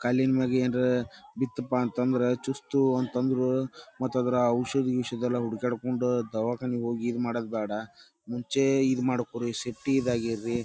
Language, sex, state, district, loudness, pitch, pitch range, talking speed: Kannada, male, Karnataka, Dharwad, -28 LUFS, 125 Hz, 120-130 Hz, 105 wpm